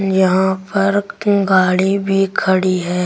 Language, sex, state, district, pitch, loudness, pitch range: Hindi, female, Delhi, New Delhi, 190 Hz, -15 LUFS, 185-195 Hz